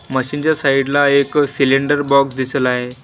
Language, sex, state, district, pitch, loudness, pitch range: Marathi, male, Maharashtra, Washim, 135 Hz, -15 LUFS, 130-145 Hz